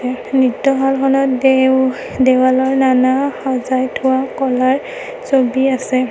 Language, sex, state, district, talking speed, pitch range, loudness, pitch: Assamese, female, Assam, Kamrup Metropolitan, 90 wpm, 255-270 Hz, -15 LUFS, 260 Hz